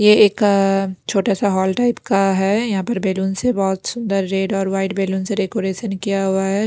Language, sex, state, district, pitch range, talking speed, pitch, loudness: Hindi, female, Punjab, Pathankot, 195-210 Hz, 205 wpm, 195 Hz, -18 LUFS